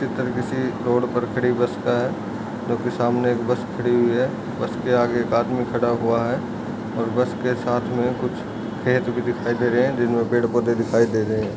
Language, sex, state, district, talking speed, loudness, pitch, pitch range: Hindi, male, Chhattisgarh, Bastar, 220 wpm, -22 LUFS, 120 Hz, 115-125 Hz